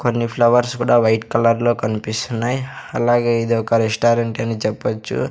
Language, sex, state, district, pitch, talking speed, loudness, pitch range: Telugu, male, Andhra Pradesh, Sri Satya Sai, 115 Hz, 135 wpm, -18 LUFS, 110-120 Hz